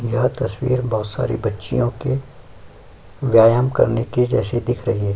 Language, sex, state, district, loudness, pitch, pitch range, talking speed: Hindi, male, Uttar Pradesh, Jyotiba Phule Nagar, -19 LUFS, 120 Hz, 110-125 Hz, 150 wpm